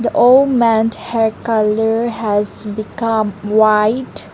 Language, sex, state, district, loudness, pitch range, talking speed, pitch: English, female, Nagaland, Dimapur, -15 LUFS, 215-230 Hz, 95 wpm, 220 Hz